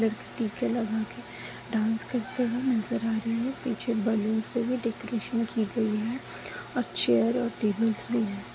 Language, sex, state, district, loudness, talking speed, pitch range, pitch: Hindi, female, Chhattisgarh, Balrampur, -29 LUFS, 160 wpm, 215-235 Hz, 225 Hz